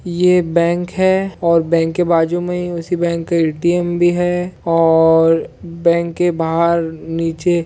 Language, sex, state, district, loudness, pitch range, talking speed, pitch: Hindi, male, Chhattisgarh, Rajnandgaon, -16 LUFS, 165-175 Hz, 165 wpm, 170 Hz